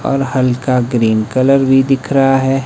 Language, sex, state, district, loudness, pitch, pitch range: Hindi, male, Himachal Pradesh, Shimla, -13 LUFS, 135 Hz, 125-135 Hz